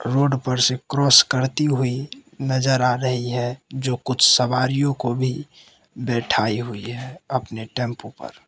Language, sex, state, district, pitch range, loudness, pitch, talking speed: Hindi, male, Mizoram, Aizawl, 120-135 Hz, -20 LUFS, 130 Hz, 150 wpm